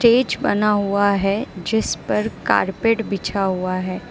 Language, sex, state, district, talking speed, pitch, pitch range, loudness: Hindi, female, Gujarat, Valsad, 145 wpm, 200 Hz, 195-220 Hz, -20 LUFS